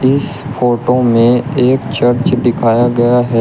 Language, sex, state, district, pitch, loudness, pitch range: Hindi, male, Uttar Pradesh, Shamli, 125 Hz, -12 LUFS, 120-130 Hz